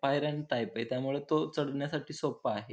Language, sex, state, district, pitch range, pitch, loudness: Marathi, male, Maharashtra, Pune, 140-150 Hz, 150 Hz, -34 LUFS